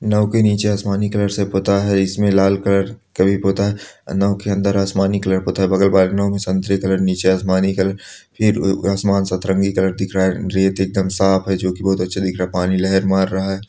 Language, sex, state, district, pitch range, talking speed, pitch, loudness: Hindi, male, Andhra Pradesh, Srikakulam, 95-100 Hz, 235 wpm, 95 Hz, -17 LUFS